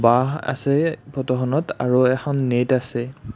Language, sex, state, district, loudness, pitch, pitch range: Assamese, male, Assam, Kamrup Metropolitan, -21 LUFS, 130 Hz, 125-140 Hz